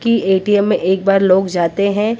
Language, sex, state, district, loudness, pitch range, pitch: Hindi, female, Maharashtra, Mumbai Suburban, -14 LUFS, 190-205 Hz, 195 Hz